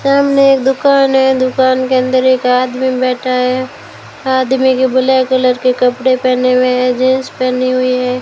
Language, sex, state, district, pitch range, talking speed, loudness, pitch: Hindi, female, Rajasthan, Bikaner, 255-260 Hz, 175 wpm, -12 LUFS, 255 Hz